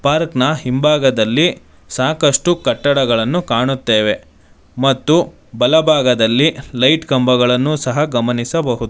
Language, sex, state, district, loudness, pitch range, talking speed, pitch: Kannada, male, Karnataka, Bangalore, -15 LUFS, 120-150 Hz, 80 wpm, 130 Hz